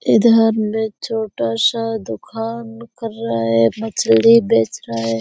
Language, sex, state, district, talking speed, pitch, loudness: Hindi, female, Jharkhand, Sahebganj, 150 wpm, 220 Hz, -17 LUFS